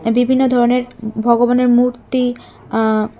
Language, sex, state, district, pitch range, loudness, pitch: Bengali, female, Tripura, West Tripura, 230-250 Hz, -15 LUFS, 245 Hz